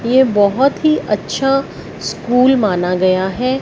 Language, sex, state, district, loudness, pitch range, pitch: Hindi, female, Punjab, Fazilka, -15 LUFS, 200-265 Hz, 245 Hz